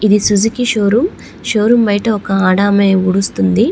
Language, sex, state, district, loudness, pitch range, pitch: Telugu, female, Andhra Pradesh, Chittoor, -13 LUFS, 195-215 Hz, 205 Hz